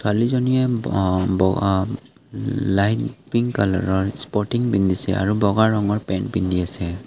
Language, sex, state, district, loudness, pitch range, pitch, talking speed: Assamese, male, Assam, Kamrup Metropolitan, -21 LUFS, 95-120 Hz, 100 Hz, 120 wpm